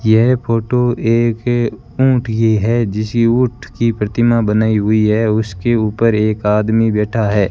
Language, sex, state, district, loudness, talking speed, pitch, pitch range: Hindi, male, Rajasthan, Bikaner, -15 LUFS, 150 wpm, 115 Hz, 110-120 Hz